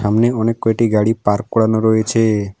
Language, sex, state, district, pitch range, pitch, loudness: Bengali, male, West Bengal, Alipurduar, 105-115 Hz, 110 Hz, -16 LUFS